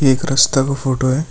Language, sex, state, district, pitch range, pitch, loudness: Hindi, male, West Bengal, Alipurduar, 130-140 Hz, 135 Hz, -16 LUFS